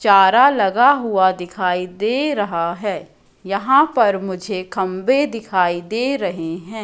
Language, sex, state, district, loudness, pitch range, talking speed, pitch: Hindi, female, Madhya Pradesh, Katni, -18 LUFS, 185-235 Hz, 130 wpm, 195 Hz